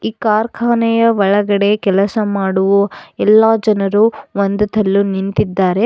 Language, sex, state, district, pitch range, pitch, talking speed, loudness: Kannada, female, Karnataka, Bidar, 195-220 Hz, 205 Hz, 90 wpm, -14 LUFS